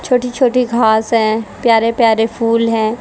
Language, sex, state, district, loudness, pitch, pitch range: Hindi, female, Haryana, Rohtak, -14 LUFS, 230 Hz, 225-245 Hz